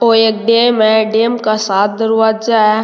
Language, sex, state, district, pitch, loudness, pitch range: Rajasthani, male, Rajasthan, Nagaur, 220 Hz, -12 LUFS, 215-230 Hz